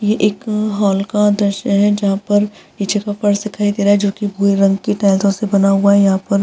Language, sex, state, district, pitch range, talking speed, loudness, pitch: Hindi, female, Bihar, Vaishali, 200-210 Hz, 260 wpm, -15 LUFS, 205 Hz